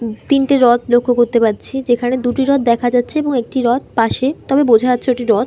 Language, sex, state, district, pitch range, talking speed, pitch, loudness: Bengali, female, West Bengal, North 24 Parganas, 240-270 Hz, 230 wpm, 245 Hz, -15 LUFS